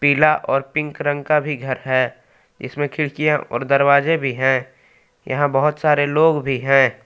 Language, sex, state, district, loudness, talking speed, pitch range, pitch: Hindi, male, Jharkhand, Palamu, -18 LUFS, 170 wpm, 130-150 Hz, 140 Hz